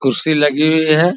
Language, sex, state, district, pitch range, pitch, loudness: Hindi, male, Bihar, Vaishali, 145-160 Hz, 155 Hz, -13 LUFS